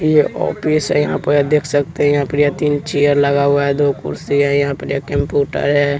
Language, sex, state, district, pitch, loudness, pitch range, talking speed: Hindi, male, Bihar, West Champaran, 145 Hz, -16 LUFS, 140-145 Hz, 240 wpm